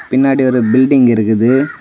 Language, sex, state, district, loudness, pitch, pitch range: Tamil, male, Tamil Nadu, Kanyakumari, -11 LUFS, 130 Hz, 115-135 Hz